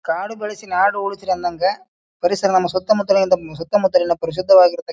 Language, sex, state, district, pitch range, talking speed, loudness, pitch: Kannada, male, Karnataka, Bijapur, 175-200 Hz, 160 wpm, -18 LUFS, 185 Hz